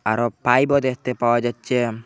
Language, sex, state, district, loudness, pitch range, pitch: Bengali, male, Assam, Hailakandi, -20 LUFS, 120-125 Hz, 120 Hz